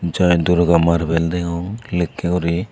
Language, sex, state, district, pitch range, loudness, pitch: Chakma, male, Tripura, Unakoti, 85-90 Hz, -18 LUFS, 85 Hz